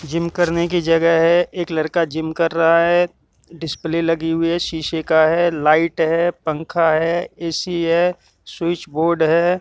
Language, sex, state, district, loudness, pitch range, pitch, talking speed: Hindi, male, Haryana, Jhajjar, -18 LUFS, 160-170 Hz, 165 Hz, 170 wpm